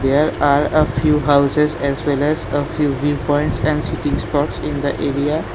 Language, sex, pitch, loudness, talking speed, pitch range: English, male, 145 Hz, -18 LUFS, 205 wpm, 140-150 Hz